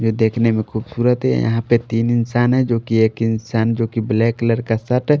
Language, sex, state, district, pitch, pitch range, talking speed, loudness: Hindi, male, Maharashtra, Washim, 115 Hz, 115-120 Hz, 240 wpm, -18 LUFS